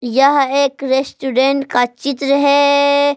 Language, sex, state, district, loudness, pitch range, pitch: Hindi, female, Jharkhand, Palamu, -14 LUFS, 265-285 Hz, 275 Hz